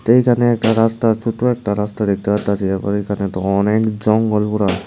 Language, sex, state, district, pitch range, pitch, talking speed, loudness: Bengali, male, Tripura, Unakoti, 100-115 Hz, 105 Hz, 160 wpm, -17 LUFS